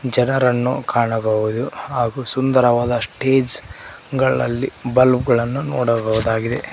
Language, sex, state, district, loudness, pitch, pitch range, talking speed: Kannada, male, Karnataka, Koppal, -18 LUFS, 125 Hz, 115-130 Hz, 80 wpm